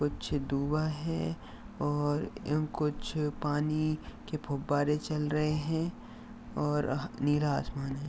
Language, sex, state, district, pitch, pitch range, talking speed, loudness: Hindi, male, Uttar Pradesh, Gorakhpur, 150 Hz, 145-155 Hz, 120 wpm, -32 LUFS